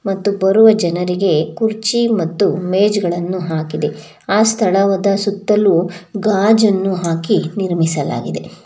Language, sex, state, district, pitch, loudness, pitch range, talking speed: Kannada, female, Karnataka, Bangalore, 195 Hz, -15 LUFS, 170-210 Hz, 90 wpm